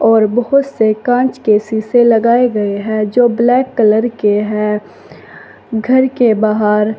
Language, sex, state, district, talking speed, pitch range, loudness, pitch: Hindi, female, Uttar Pradesh, Saharanpur, 145 wpm, 215-245 Hz, -13 LUFS, 225 Hz